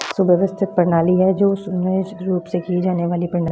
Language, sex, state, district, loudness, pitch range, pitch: Hindi, female, Bihar, Vaishali, -18 LUFS, 175-190 Hz, 185 Hz